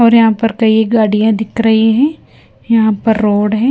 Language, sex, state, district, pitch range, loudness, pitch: Hindi, female, Himachal Pradesh, Shimla, 215-230 Hz, -12 LUFS, 220 Hz